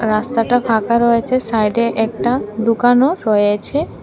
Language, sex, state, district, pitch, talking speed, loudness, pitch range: Bengali, female, Tripura, West Tripura, 230 Hz, 105 wpm, -16 LUFS, 220-245 Hz